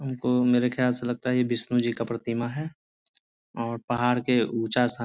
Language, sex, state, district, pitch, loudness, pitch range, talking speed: Hindi, male, Bihar, Jamui, 120 Hz, -26 LUFS, 115-125 Hz, 215 wpm